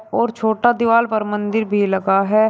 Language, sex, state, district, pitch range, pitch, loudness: Hindi, male, Uttar Pradesh, Shamli, 205-225 Hz, 220 Hz, -17 LUFS